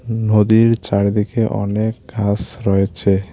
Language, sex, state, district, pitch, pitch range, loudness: Bengali, male, West Bengal, Alipurduar, 105 Hz, 100-110 Hz, -17 LUFS